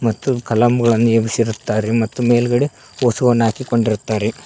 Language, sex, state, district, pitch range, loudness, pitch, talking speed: Kannada, male, Karnataka, Koppal, 110-120 Hz, -17 LUFS, 115 Hz, 95 wpm